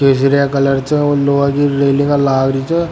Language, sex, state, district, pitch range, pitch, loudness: Rajasthani, male, Rajasthan, Churu, 135-145 Hz, 140 Hz, -13 LUFS